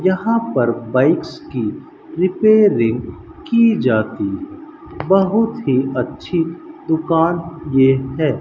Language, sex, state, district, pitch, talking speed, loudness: Hindi, male, Rajasthan, Bikaner, 165 Hz, 95 wpm, -17 LUFS